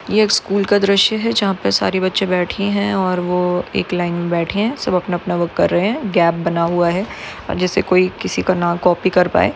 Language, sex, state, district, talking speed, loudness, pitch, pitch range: Hindi, female, Maharashtra, Solapur, 245 wpm, -17 LUFS, 185 Hz, 175-200 Hz